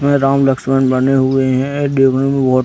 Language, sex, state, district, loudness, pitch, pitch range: Hindi, male, Chhattisgarh, Raigarh, -14 LUFS, 135 Hz, 130-135 Hz